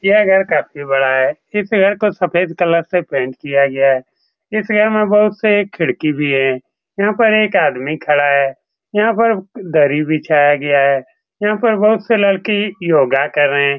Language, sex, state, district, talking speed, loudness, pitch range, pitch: Hindi, male, Bihar, Saran, 195 wpm, -15 LUFS, 145-210 Hz, 180 Hz